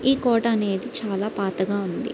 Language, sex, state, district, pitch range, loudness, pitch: Telugu, female, Andhra Pradesh, Srikakulam, 195-230 Hz, -24 LUFS, 205 Hz